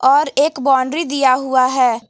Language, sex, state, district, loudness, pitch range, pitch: Hindi, female, Jharkhand, Garhwa, -15 LUFS, 255-280 Hz, 265 Hz